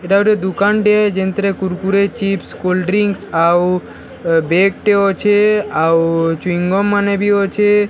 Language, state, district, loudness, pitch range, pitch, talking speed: Sambalpuri, Odisha, Sambalpur, -15 LUFS, 180-205 Hz, 195 Hz, 150 wpm